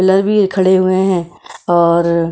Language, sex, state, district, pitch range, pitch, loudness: Hindi, female, Maharashtra, Chandrapur, 170-190 Hz, 185 Hz, -13 LUFS